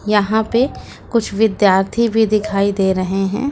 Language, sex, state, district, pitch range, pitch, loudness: Hindi, female, Uttar Pradesh, Lucknow, 195-225 Hz, 210 Hz, -16 LUFS